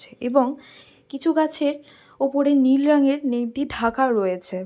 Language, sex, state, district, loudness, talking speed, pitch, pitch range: Bengali, female, West Bengal, Dakshin Dinajpur, -21 LUFS, 140 wpm, 275 Hz, 245-285 Hz